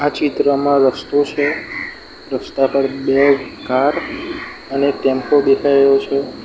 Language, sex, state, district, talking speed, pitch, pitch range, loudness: Gujarati, male, Gujarat, Valsad, 120 wpm, 140 Hz, 135-145 Hz, -16 LUFS